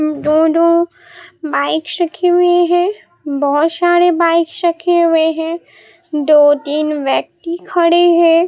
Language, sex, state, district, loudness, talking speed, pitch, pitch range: Hindi, male, Bihar, Katihar, -13 LUFS, 105 wpm, 335 Hz, 310-350 Hz